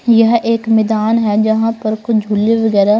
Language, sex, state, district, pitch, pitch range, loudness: Hindi, female, Haryana, Rohtak, 220 Hz, 215-230 Hz, -13 LUFS